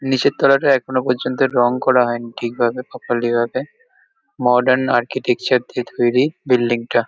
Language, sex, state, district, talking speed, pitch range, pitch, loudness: Bengali, male, West Bengal, Kolkata, 135 wpm, 120-130 Hz, 125 Hz, -17 LUFS